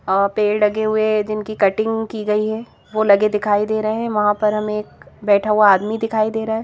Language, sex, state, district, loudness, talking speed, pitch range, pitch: Hindi, female, Madhya Pradesh, Bhopal, -18 LUFS, 235 wpm, 210-220 Hz, 215 Hz